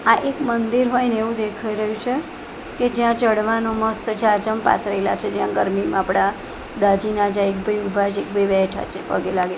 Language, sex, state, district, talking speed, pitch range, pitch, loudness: Gujarati, female, Gujarat, Gandhinagar, 200 wpm, 205-235 Hz, 220 Hz, -20 LUFS